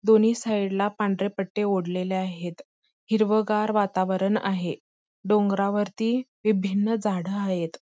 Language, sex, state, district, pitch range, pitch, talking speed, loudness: Marathi, female, Karnataka, Belgaum, 190-215 Hz, 200 Hz, 100 wpm, -25 LUFS